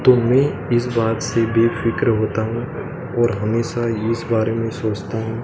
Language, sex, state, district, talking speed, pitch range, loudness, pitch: Hindi, male, Madhya Pradesh, Dhar, 165 wpm, 110-120 Hz, -20 LUFS, 115 Hz